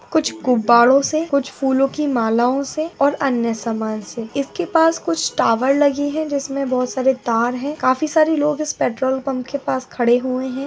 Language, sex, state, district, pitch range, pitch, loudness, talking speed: Angika, female, Bihar, Madhepura, 245-290 Hz, 265 Hz, -18 LUFS, 190 wpm